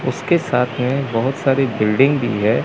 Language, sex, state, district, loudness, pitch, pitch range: Hindi, male, Chandigarh, Chandigarh, -17 LUFS, 130 Hz, 115-135 Hz